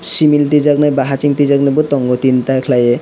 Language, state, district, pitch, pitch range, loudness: Kokborok, Tripura, West Tripura, 140 Hz, 130-145 Hz, -12 LUFS